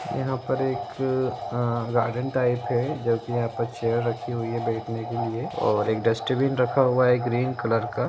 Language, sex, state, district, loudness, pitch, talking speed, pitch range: Hindi, male, Jharkhand, Jamtara, -25 LUFS, 120 Hz, 200 wpm, 115-125 Hz